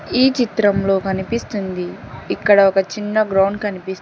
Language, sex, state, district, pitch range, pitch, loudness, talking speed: Telugu, female, Telangana, Hyderabad, 190-215 Hz, 200 Hz, -18 LUFS, 120 wpm